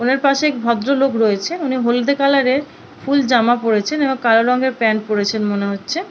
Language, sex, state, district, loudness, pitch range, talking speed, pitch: Bengali, female, West Bengal, Purulia, -16 LUFS, 225-275 Hz, 195 wpm, 250 Hz